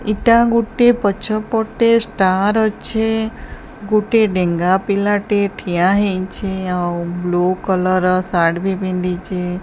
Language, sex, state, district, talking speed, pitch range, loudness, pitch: Odia, female, Odisha, Sambalpur, 125 wpm, 185-220 Hz, -17 LUFS, 195 Hz